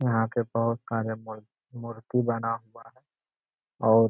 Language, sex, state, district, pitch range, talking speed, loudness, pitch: Hindi, male, Bihar, Araria, 110-120 Hz, 160 wpm, -29 LUFS, 115 Hz